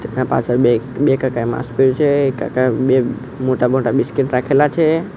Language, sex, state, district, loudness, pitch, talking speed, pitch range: Gujarati, male, Gujarat, Gandhinagar, -16 LUFS, 130 Hz, 185 wpm, 125-140 Hz